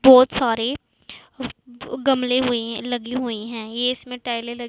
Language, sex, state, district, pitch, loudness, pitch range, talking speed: Hindi, female, Punjab, Pathankot, 245 Hz, -21 LUFS, 235-255 Hz, 130 wpm